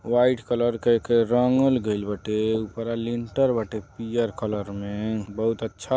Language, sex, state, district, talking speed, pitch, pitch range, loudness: Bhojpuri, male, Uttar Pradesh, Deoria, 120 wpm, 115 Hz, 110-120 Hz, -24 LUFS